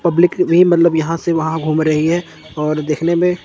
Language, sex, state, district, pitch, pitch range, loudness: Hindi, male, Chandigarh, Chandigarh, 165 Hz, 155-170 Hz, -15 LUFS